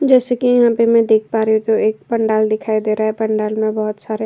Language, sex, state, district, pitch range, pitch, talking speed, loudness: Hindi, female, Uttar Pradesh, Jyotiba Phule Nagar, 215-230 Hz, 220 Hz, 280 wpm, -16 LUFS